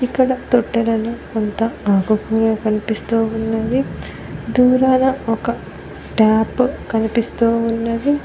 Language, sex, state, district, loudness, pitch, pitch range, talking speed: Telugu, female, Telangana, Mahabubabad, -18 LUFS, 230 Hz, 220-250 Hz, 85 wpm